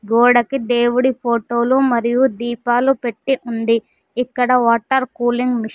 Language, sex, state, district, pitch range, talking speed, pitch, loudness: Telugu, female, Telangana, Mahabubabad, 235-250 Hz, 135 wpm, 240 Hz, -17 LUFS